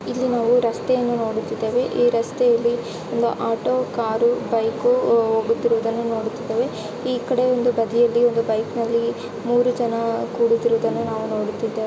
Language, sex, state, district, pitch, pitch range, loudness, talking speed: Kannada, female, Karnataka, Raichur, 235 Hz, 225-245 Hz, -21 LUFS, 125 wpm